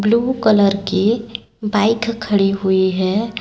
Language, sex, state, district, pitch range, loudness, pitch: Hindi, female, Chhattisgarh, Raipur, 195-225 Hz, -17 LUFS, 210 Hz